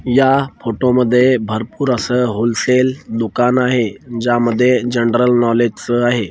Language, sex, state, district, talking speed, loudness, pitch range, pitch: Marathi, male, Maharashtra, Washim, 125 wpm, -15 LUFS, 115-125 Hz, 120 Hz